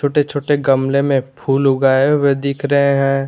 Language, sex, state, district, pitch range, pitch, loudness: Hindi, male, Jharkhand, Garhwa, 135-145 Hz, 140 Hz, -15 LUFS